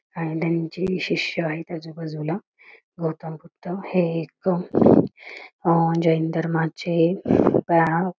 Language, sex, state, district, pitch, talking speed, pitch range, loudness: Marathi, female, Karnataka, Belgaum, 165 Hz, 80 wpm, 160-180 Hz, -22 LUFS